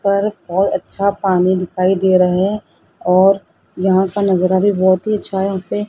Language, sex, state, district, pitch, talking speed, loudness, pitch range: Hindi, female, Rajasthan, Jaipur, 190 Hz, 185 wpm, -15 LUFS, 185-200 Hz